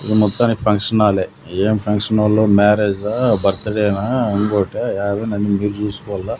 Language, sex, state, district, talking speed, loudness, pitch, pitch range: Telugu, male, Andhra Pradesh, Sri Satya Sai, 160 wpm, -17 LUFS, 105 Hz, 100-110 Hz